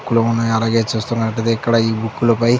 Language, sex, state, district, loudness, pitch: Telugu, male, Andhra Pradesh, Chittoor, -17 LUFS, 115 Hz